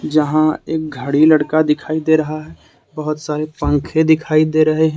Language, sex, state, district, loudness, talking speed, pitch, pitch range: Hindi, male, Jharkhand, Deoghar, -16 LUFS, 180 wpm, 155 Hz, 150-155 Hz